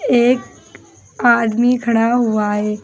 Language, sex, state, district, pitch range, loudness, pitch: Hindi, female, Uttar Pradesh, Saharanpur, 215-245 Hz, -15 LUFS, 235 Hz